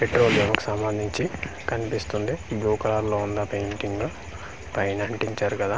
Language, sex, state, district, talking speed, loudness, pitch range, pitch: Telugu, male, Andhra Pradesh, Manyam, 135 wpm, -26 LUFS, 100-110 Hz, 105 Hz